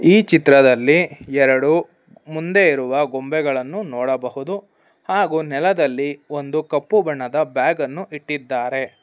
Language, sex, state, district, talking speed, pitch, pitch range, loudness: Kannada, female, Karnataka, Bangalore, 95 wpm, 145 Hz, 135-165 Hz, -18 LUFS